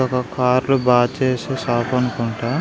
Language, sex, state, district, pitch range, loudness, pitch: Telugu, male, Andhra Pradesh, Visakhapatnam, 120-130 Hz, -19 LUFS, 125 Hz